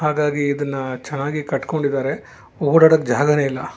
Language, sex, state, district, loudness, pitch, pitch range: Kannada, male, Karnataka, Bangalore, -19 LUFS, 145 Hz, 135-150 Hz